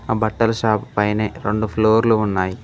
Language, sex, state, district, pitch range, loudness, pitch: Telugu, male, Telangana, Mahabubabad, 105-110 Hz, -19 LUFS, 110 Hz